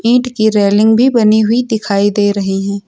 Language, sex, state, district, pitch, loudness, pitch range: Hindi, female, Uttar Pradesh, Lucknow, 215 Hz, -12 LUFS, 200-230 Hz